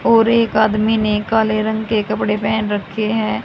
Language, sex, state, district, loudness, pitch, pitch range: Hindi, female, Haryana, Jhajjar, -17 LUFS, 215 Hz, 210-220 Hz